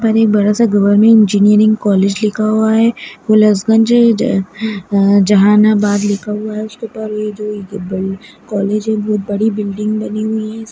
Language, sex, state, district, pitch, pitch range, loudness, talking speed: Hindi, male, Bihar, Gaya, 210 Hz, 205-220 Hz, -13 LUFS, 145 wpm